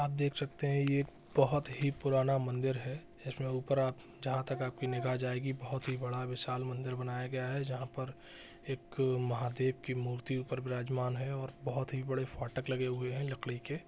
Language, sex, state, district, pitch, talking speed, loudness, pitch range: Hindi, male, Bihar, Jahanabad, 130 Hz, 205 wpm, -36 LUFS, 125-135 Hz